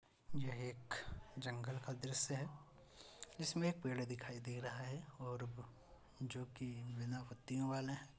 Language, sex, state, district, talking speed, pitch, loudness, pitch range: Hindi, male, Uttar Pradesh, Ghazipur, 145 wpm, 130 Hz, -46 LUFS, 125-135 Hz